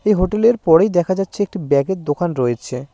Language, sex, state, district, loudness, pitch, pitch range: Bengali, male, West Bengal, Cooch Behar, -17 LUFS, 180 Hz, 145-200 Hz